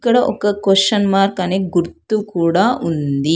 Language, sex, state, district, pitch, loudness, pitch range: Telugu, female, Telangana, Hyderabad, 195 Hz, -16 LUFS, 175-210 Hz